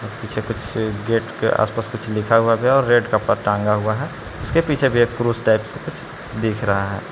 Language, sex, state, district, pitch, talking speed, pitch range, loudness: Hindi, male, Jharkhand, Palamu, 115 Hz, 195 wpm, 110-120 Hz, -19 LUFS